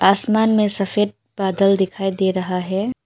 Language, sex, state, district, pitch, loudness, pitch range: Hindi, female, Arunachal Pradesh, Papum Pare, 195 Hz, -18 LUFS, 190-210 Hz